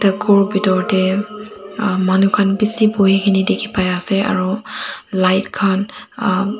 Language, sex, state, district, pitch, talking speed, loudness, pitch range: Nagamese, female, Nagaland, Dimapur, 200 Hz, 110 wpm, -16 LUFS, 190-210 Hz